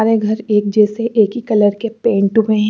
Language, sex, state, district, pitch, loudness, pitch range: Hindi, female, Chandigarh, Chandigarh, 215 Hz, -15 LUFS, 210-225 Hz